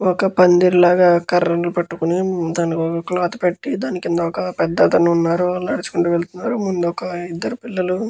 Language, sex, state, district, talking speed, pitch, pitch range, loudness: Telugu, male, Andhra Pradesh, Guntur, 120 wpm, 175 Hz, 170-180 Hz, -18 LUFS